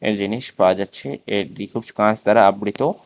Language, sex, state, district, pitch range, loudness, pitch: Bengali, male, Tripura, West Tripura, 100-110 Hz, -20 LUFS, 105 Hz